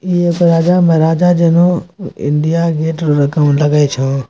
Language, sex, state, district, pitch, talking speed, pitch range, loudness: Maithili, male, Bihar, Bhagalpur, 165 Hz, 125 wpm, 150-175 Hz, -12 LUFS